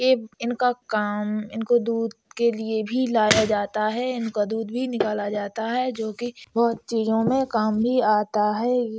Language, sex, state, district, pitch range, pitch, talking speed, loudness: Hindi, female, Uttar Pradesh, Hamirpur, 215-240 Hz, 225 Hz, 175 wpm, -24 LUFS